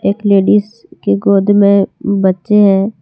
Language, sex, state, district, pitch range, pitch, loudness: Hindi, female, Jharkhand, Deoghar, 195-205 Hz, 200 Hz, -11 LUFS